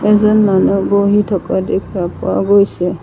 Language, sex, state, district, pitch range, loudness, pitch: Assamese, female, Assam, Sonitpur, 195-210 Hz, -13 LUFS, 200 Hz